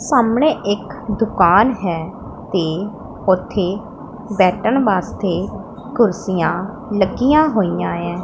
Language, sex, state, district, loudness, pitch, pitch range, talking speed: Punjabi, female, Punjab, Pathankot, -18 LUFS, 205 Hz, 185-230 Hz, 85 wpm